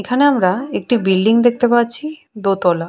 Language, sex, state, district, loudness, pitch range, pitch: Bengali, female, West Bengal, Purulia, -16 LUFS, 195-250 Hz, 235 Hz